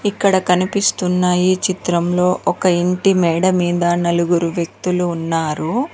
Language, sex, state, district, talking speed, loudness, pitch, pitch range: Telugu, female, Telangana, Mahabubabad, 100 wpm, -17 LUFS, 180 Hz, 170-185 Hz